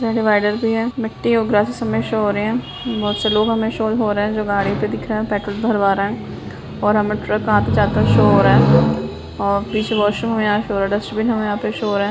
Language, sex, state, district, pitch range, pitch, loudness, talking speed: Hindi, female, Bihar, Madhepura, 205-225 Hz, 210 Hz, -18 LUFS, 280 wpm